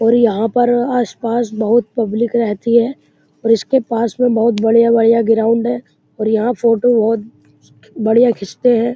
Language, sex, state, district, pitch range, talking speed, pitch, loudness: Hindi, male, Uttar Pradesh, Muzaffarnagar, 225-240 Hz, 155 wpm, 230 Hz, -15 LUFS